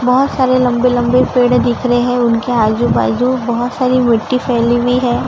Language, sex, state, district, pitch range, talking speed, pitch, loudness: Hindi, male, Maharashtra, Gondia, 240-250 Hz, 170 wpm, 245 Hz, -13 LUFS